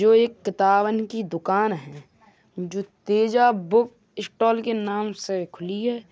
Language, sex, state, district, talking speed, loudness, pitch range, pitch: Bundeli, female, Uttar Pradesh, Hamirpur, 145 wpm, -23 LUFS, 195-225 Hz, 210 Hz